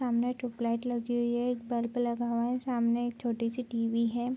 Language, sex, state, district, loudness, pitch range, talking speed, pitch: Hindi, female, Bihar, Araria, -31 LUFS, 235-245 Hz, 190 wpm, 240 Hz